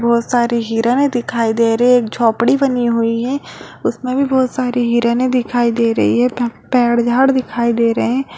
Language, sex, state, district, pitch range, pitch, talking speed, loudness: Hindi, female, Bihar, Purnia, 235-250 Hz, 240 Hz, 210 wpm, -15 LUFS